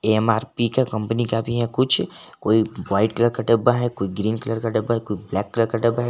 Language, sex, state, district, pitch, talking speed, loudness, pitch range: Hindi, male, Jharkhand, Garhwa, 115 Hz, 245 wpm, -21 LUFS, 110-120 Hz